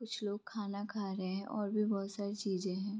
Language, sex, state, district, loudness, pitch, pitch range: Hindi, female, Bihar, Vaishali, -38 LUFS, 205 Hz, 195-210 Hz